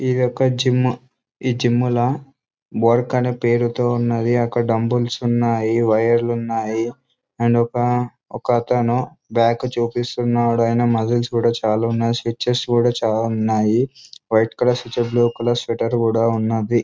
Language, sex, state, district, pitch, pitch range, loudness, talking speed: Telugu, male, Andhra Pradesh, Anantapur, 120 Hz, 115-125 Hz, -19 LUFS, 135 wpm